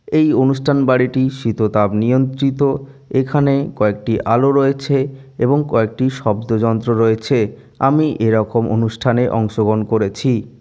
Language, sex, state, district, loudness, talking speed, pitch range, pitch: Bengali, male, West Bengal, Jalpaiguri, -16 LUFS, 100 wpm, 110-135 Hz, 125 Hz